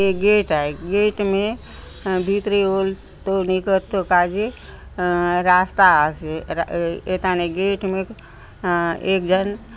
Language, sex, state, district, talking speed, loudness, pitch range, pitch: Halbi, female, Chhattisgarh, Bastar, 115 wpm, -20 LUFS, 175-195 Hz, 190 Hz